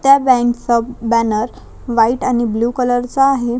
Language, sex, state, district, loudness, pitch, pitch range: Marathi, female, Maharashtra, Chandrapur, -15 LUFS, 240 Hz, 235-255 Hz